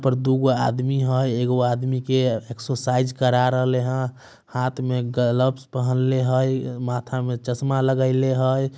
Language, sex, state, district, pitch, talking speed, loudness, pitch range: Magahi, male, Bihar, Samastipur, 130 Hz, 155 wpm, -22 LUFS, 125-130 Hz